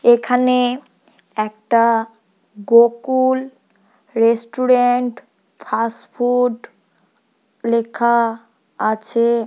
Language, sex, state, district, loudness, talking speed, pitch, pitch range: Bengali, female, West Bengal, Purulia, -17 LUFS, 45 wpm, 235 Hz, 225-250 Hz